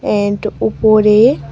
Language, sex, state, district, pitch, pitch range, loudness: Bengali, female, Tripura, West Tripura, 210 Hz, 205-215 Hz, -12 LUFS